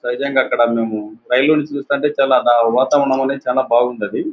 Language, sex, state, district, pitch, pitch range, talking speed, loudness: Telugu, male, Andhra Pradesh, Anantapur, 130 Hz, 120-140 Hz, 140 wpm, -16 LUFS